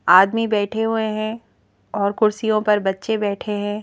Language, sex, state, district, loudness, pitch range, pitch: Hindi, female, Madhya Pradesh, Bhopal, -20 LUFS, 205-220 Hz, 210 Hz